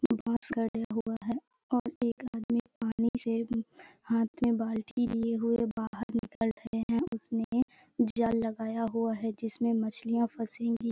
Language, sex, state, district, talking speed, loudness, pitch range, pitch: Hindi, female, Bihar, Purnia, 145 wpm, -32 LUFS, 225-235 Hz, 230 Hz